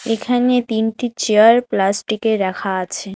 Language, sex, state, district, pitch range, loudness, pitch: Bengali, female, West Bengal, Alipurduar, 195-235 Hz, -17 LUFS, 220 Hz